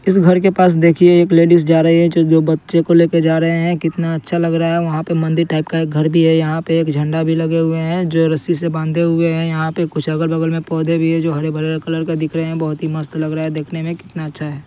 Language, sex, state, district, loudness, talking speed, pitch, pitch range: Hindi, male, Chandigarh, Chandigarh, -15 LUFS, 295 wpm, 165 Hz, 160-170 Hz